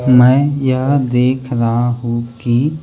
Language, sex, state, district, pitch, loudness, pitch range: Hindi, male, Madhya Pradesh, Bhopal, 125 Hz, -15 LUFS, 120-130 Hz